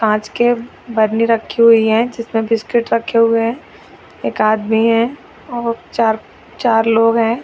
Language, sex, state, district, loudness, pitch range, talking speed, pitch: Hindi, female, Chhattisgarh, Raigarh, -15 LUFS, 225-235 Hz, 160 wpm, 230 Hz